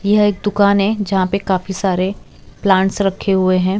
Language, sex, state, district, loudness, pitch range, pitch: Hindi, female, Chhattisgarh, Raipur, -16 LUFS, 190-205 Hz, 195 Hz